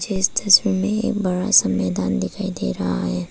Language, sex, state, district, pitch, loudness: Hindi, female, Arunachal Pradesh, Papum Pare, 180 Hz, -19 LUFS